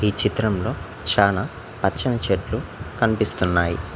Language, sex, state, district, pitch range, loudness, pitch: Telugu, male, Telangana, Mahabubabad, 90-110 Hz, -22 LUFS, 100 Hz